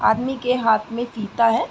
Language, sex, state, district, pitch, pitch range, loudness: Hindi, female, Uttar Pradesh, Varanasi, 230 Hz, 220-250 Hz, -21 LUFS